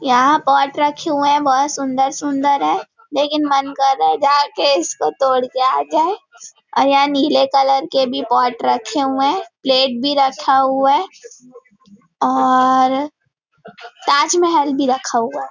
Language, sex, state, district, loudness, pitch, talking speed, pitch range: Hindi, female, Chhattisgarh, Bastar, -16 LUFS, 275 Hz, 160 wpm, 260-290 Hz